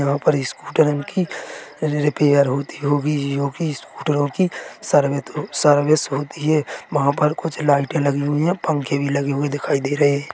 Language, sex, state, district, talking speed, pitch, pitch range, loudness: Hindi, male, Chhattisgarh, Bilaspur, 170 wpm, 145 Hz, 140-150 Hz, -20 LUFS